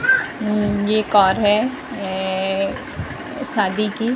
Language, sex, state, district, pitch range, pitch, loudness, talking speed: Hindi, female, Maharashtra, Gondia, 200-260 Hz, 215 Hz, -20 LUFS, 160 wpm